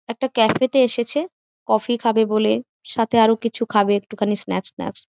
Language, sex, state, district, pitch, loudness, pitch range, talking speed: Bengali, female, West Bengal, Jhargram, 230 Hz, -20 LUFS, 215-240 Hz, 155 wpm